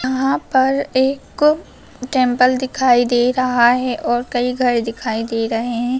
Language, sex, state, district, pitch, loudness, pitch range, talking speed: Hindi, female, Bihar, Samastipur, 250 Hz, -17 LUFS, 240-260 Hz, 150 wpm